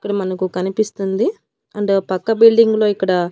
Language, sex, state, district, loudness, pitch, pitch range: Telugu, female, Andhra Pradesh, Annamaya, -17 LUFS, 200 Hz, 185-220 Hz